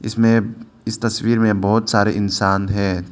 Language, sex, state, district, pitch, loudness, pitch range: Hindi, male, Arunachal Pradesh, Lower Dibang Valley, 110 Hz, -18 LUFS, 100-115 Hz